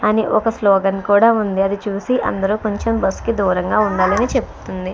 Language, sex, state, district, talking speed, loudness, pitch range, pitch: Telugu, female, Andhra Pradesh, Krishna, 170 wpm, -17 LUFS, 195-220 Hz, 205 Hz